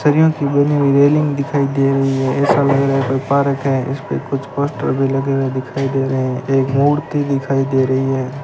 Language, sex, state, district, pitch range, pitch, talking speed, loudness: Hindi, male, Rajasthan, Bikaner, 135-140 Hz, 135 Hz, 225 wpm, -16 LUFS